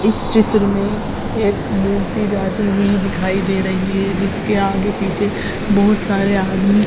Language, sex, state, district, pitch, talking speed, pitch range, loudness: Hindi, female, Uttar Pradesh, Hamirpur, 200 Hz, 150 wpm, 195-205 Hz, -17 LUFS